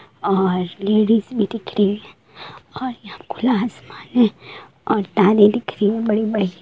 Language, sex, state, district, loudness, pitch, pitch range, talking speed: Hindi, female, Bihar, Sitamarhi, -19 LUFS, 210 Hz, 200-225 Hz, 145 wpm